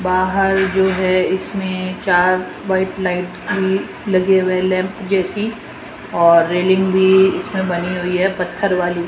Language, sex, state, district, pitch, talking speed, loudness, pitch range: Hindi, female, Rajasthan, Jaipur, 185 Hz, 140 wpm, -17 LUFS, 180-190 Hz